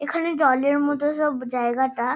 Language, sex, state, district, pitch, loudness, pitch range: Bengali, female, West Bengal, Kolkata, 285 Hz, -22 LUFS, 255-295 Hz